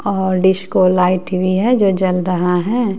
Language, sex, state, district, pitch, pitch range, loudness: Hindi, female, Bihar, West Champaran, 185 Hz, 185-195 Hz, -15 LUFS